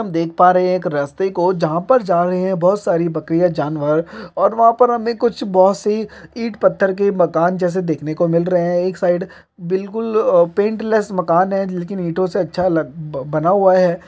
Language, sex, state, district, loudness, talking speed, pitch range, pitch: Hindi, male, Bihar, East Champaran, -17 LUFS, 205 wpm, 170-200 Hz, 185 Hz